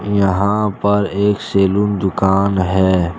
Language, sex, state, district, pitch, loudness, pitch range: Hindi, male, Jharkhand, Deoghar, 100 Hz, -16 LUFS, 95-100 Hz